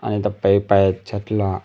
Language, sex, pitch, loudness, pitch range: Marathi, male, 100 Hz, -19 LUFS, 95-105 Hz